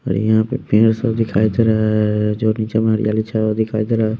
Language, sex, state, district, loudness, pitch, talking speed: Hindi, male, Bihar, West Champaran, -17 LUFS, 110 Hz, 270 wpm